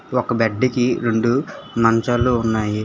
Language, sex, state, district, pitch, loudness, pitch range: Telugu, male, Telangana, Hyderabad, 120 Hz, -19 LUFS, 115-125 Hz